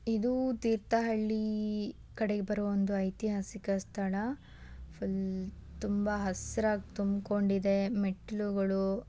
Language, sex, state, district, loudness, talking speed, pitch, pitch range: Kannada, female, Karnataka, Shimoga, -33 LUFS, 80 wpm, 205 Hz, 195-215 Hz